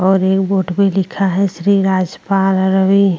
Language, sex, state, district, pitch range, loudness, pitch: Hindi, female, Uttar Pradesh, Jyotiba Phule Nagar, 190-195 Hz, -15 LUFS, 195 Hz